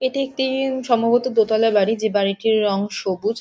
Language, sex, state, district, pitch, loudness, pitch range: Bengali, female, West Bengal, Jhargram, 225 Hz, -19 LUFS, 210-260 Hz